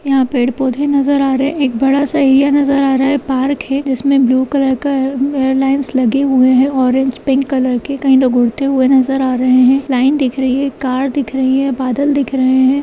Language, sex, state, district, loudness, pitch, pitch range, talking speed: Kumaoni, female, Uttarakhand, Uttarkashi, -13 LUFS, 270 Hz, 260-275 Hz, 205 wpm